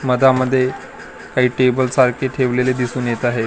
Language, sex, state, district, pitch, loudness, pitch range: Marathi, male, Maharashtra, Gondia, 125 Hz, -17 LUFS, 125-130 Hz